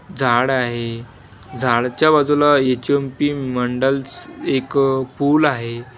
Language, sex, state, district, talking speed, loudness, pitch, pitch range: Marathi, male, Maharashtra, Washim, 90 wpm, -18 LUFS, 130 Hz, 120-140 Hz